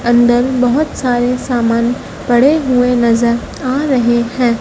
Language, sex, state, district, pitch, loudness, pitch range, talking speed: Hindi, female, Madhya Pradesh, Dhar, 245 Hz, -13 LUFS, 235-255 Hz, 130 wpm